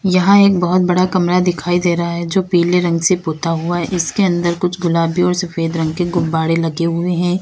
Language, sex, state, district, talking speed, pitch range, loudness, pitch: Hindi, female, Uttar Pradesh, Lalitpur, 225 wpm, 170-180 Hz, -15 LUFS, 175 Hz